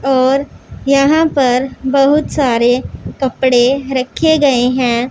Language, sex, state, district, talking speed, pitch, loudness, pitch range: Hindi, female, Punjab, Pathankot, 105 wpm, 265 Hz, -13 LUFS, 250-275 Hz